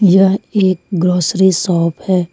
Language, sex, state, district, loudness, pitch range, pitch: Hindi, female, Jharkhand, Ranchi, -14 LUFS, 180-195 Hz, 185 Hz